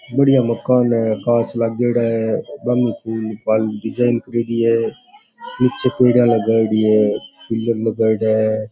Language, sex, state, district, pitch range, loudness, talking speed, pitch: Rajasthani, male, Rajasthan, Churu, 110-120 Hz, -17 LUFS, 125 wpm, 115 Hz